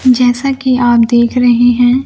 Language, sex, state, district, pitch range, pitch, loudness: Hindi, female, Bihar, Kaimur, 240-255 Hz, 245 Hz, -10 LUFS